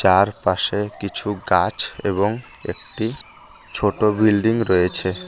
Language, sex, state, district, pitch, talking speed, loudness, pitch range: Bengali, male, West Bengal, Cooch Behar, 100 Hz, 90 wpm, -20 LUFS, 95-105 Hz